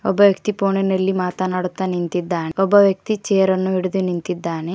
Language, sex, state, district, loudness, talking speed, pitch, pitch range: Kannada, female, Karnataka, Koppal, -19 LUFS, 125 wpm, 185 Hz, 180-195 Hz